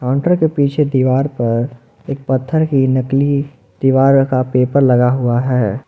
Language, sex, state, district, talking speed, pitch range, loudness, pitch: Hindi, male, Jharkhand, Ranchi, 155 wpm, 125-140 Hz, -14 LUFS, 130 Hz